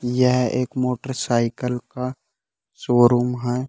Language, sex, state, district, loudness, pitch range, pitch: Hindi, male, Rajasthan, Jaipur, -21 LUFS, 120-125 Hz, 125 Hz